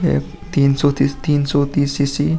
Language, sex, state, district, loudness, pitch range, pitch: Hindi, male, Uttar Pradesh, Muzaffarnagar, -18 LUFS, 140-145 Hz, 140 Hz